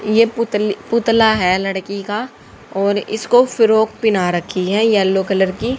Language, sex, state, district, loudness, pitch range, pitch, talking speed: Hindi, female, Haryana, Charkhi Dadri, -16 LUFS, 195-225 Hz, 210 Hz, 155 wpm